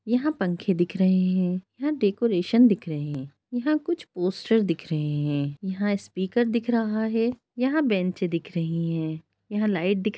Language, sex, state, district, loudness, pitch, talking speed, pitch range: Hindi, female, Uttar Pradesh, Jalaun, -25 LUFS, 195 Hz, 175 wpm, 175-230 Hz